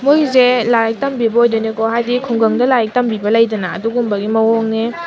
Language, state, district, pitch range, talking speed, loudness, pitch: Manipuri, Manipur, Imphal West, 225-250 Hz, 120 wpm, -14 LUFS, 230 Hz